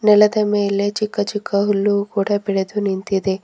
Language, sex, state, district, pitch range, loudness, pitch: Kannada, female, Karnataka, Bidar, 200-210 Hz, -19 LUFS, 205 Hz